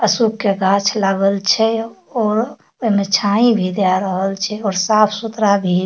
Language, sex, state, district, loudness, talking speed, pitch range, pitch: Maithili, female, Bihar, Darbhanga, -16 LUFS, 175 wpm, 195-220 Hz, 200 Hz